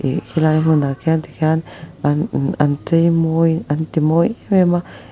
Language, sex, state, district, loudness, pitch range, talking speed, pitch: Mizo, male, Mizoram, Aizawl, -17 LUFS, 155-165 Hz, 190 wpm, 160 Hz